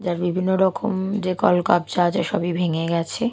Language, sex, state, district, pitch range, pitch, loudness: Bengali, female, Odisha, Malkangiri, 175-190 Hz, 175 Hz, -21 LUFS